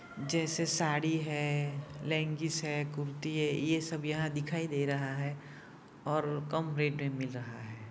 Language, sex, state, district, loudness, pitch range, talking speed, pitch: Hindi, male, Jharkhand, Jamtara, -34 LUFS, 145-155 Hz, 150 wpm, 150 Hz